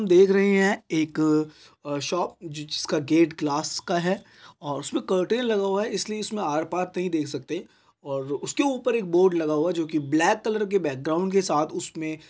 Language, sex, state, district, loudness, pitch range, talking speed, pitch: Hindi, male, Chhattisgarh, Korba, -25 LUFS, 155-195 Hz, 210 wpm, 175 Hz